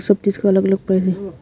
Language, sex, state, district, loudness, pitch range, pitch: Hindi, male, Arunachal Pradesh, Longding, -17 LUFS, 190-200 Hz, 195 Hz